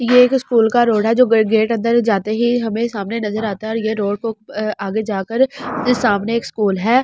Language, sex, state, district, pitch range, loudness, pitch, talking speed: Hindi, female, Delhi, New Delhi, 215-240 Hz, -17 LUFS, 225 Hz, 275 wpm